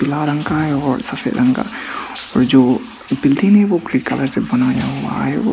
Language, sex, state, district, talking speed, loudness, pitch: Hindi, male, Arunachal Pradesh, Papum Pare, 215 wpm, -16 LUFS, 205 Hz